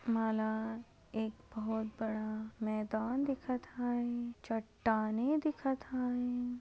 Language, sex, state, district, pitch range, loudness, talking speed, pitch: Hindi, female, Maharashtra, Sindhudurg, 220-245 Hz, -37 LUFS, 90 wpm, 230 Hz